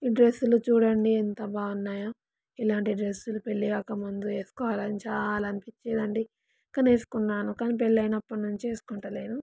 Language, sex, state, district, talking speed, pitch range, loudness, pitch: Telugu, female, Telangana, Karimnagar, 140 wpm, 210-230 Hz, -28 LUFS, 215 Hz